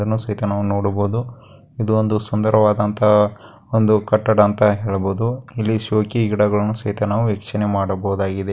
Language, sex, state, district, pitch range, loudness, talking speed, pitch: Kannada, male, Karnataka, Dakshina Kannada, 105-110 Hz, -18 LUFS, 125 wpm, 105 Hz